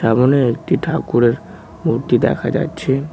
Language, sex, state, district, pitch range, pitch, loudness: Bengali, male, West Bengal, Cooch Behar, 120-160 Hz, 135 Hz, -17 LUFS